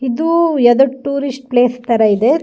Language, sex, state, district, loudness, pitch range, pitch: Kannada, female, Karnataka, Shimoga, -14 LUFS, 240-280 Hz, 265 Hz